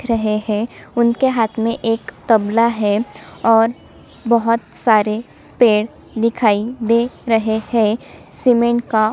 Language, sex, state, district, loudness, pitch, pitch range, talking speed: Hindi, female, Chhattisgarh, Sukma, -17 LUFS, 230 Hz, 220-235 Hz, 130 wpm